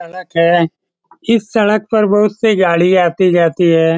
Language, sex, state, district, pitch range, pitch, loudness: Hindi, male, Bihar, Saran, 170-210 Hz, 185 Hz, -13 LUFS